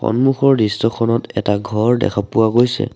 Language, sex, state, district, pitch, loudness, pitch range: Assamese, male, Assam, Sonitpur, 115 Hz, -16 LUFS, 105-125 Hz